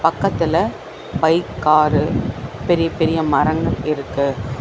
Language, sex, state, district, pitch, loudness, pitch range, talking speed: Tamil, female, Tamil Nadu, Chennai, 150 Hz, -18 LUFS, 135-160 Hz, 90 wpm